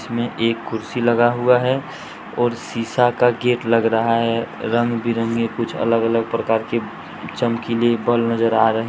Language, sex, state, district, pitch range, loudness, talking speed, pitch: Hindi, male, Jharkhand, Deoghar, 115-120 Hz, -19 LUFS, 170 wpm, 115 Hz